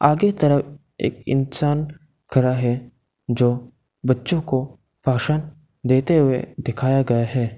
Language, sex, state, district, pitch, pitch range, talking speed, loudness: Hindi, male, Arunachal Pradesh, Lower Dibang Valley, 135 Hz, 125-150 Hz, 120 wpm, -21 LUFS